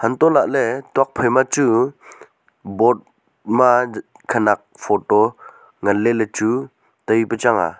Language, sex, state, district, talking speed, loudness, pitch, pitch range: Wancho, male, Arunachal Pradesh, Longding, 110 wpm, -18 LUFS, 115 Hz, 110-125 Hz